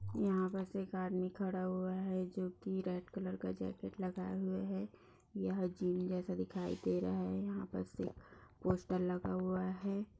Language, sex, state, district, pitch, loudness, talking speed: Hindi, female, Bihar, Bhagalpur, 185 Hz, -40 LUFS, 175 wpm